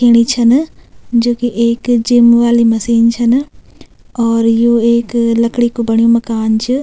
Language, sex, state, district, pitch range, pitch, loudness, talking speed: Garhwali, female, Uttarakhand, Tehri Garhwal, 230-240 Hz, 235 Hz, -12 LUFS, 150 wpm